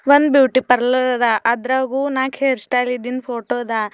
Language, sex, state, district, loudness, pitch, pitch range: Kannada, female, Karnataka, Bidar, -17 LUFS, 255 Hz, 245-265 Hz